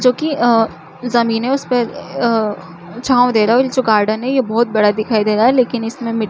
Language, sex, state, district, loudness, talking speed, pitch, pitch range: Chhattisgarhi, female, Chhattisgarh, Jashpur, -15 LUFS, 230 wpm, 235 Hz, 220-250 Hz